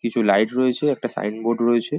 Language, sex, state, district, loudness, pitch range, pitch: Bengali, male, West Bengal, Paschim Medinipur, -21 LUFS, 110-130 Hz, 120 Hz